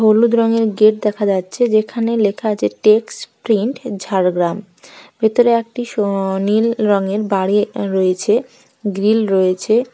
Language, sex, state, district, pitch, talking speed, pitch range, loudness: Bengali, female, West Bengal, Jhargram, 215 Hz, 115 wpm, 195-230 Hz, -16 LUFS